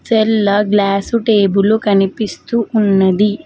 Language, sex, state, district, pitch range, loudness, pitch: Telugu, female, Telangana, Mahabubabad, 200-220 Hz, -14 LUFS, 210 Hz